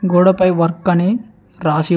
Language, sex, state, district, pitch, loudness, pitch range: Telugu, male, Telangana, Mahabubabad, 180 Hz, -15 LUFS, 170-190 Hz